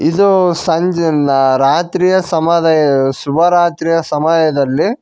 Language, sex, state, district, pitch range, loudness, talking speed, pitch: Kannada, male, Karnataka, Koppal, 145-175 Hz, -12 LUFS, 70 wpm, 165 Hz